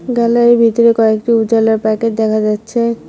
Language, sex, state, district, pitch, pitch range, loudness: Bengali, female, West Bengal, Cooch Behar, 230 Hz, 220-235 Hz, -12 LUFS